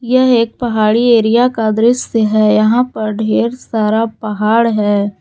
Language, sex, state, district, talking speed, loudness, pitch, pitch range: Hindi, female, Jharkhand, Garhwa, 150 wpm, -13 LUFS, 225 Hz, 215-235 Hz